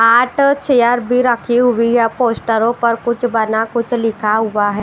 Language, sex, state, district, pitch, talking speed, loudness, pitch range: Hindi, female, Bihar, West Champaran, 235 Hz, 175 wpm, -15 LUFS, 225-245 Hz